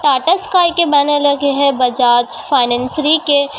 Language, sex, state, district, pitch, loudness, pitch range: Hindi, male, Maharashtra, Mumbai Suburban, 285 Hz, -13 LUFS, 255-305 Hz